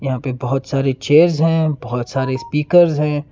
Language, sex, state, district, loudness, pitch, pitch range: Hindi, male, Karnataka, Bangalore, -17 LUFS, 140 Hz, 130-155 Hz